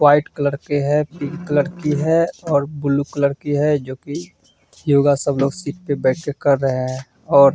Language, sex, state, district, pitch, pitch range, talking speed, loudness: Hindi, male, Bihar, Vaishali, 145 Hz, 140-150 Hz, 205 wpm, -19 LUFS